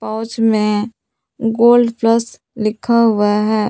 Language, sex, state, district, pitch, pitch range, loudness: Hindi, female, Jharkhand, Palamu, 225 Hz, 215-230 Hz, -15 LUFS